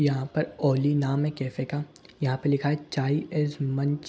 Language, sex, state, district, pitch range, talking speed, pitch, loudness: Hindi, male, Uttarakhand, Tehri Garhwal, 135-150 Hz, 220 wpm, 145 Hz, -27 LUFS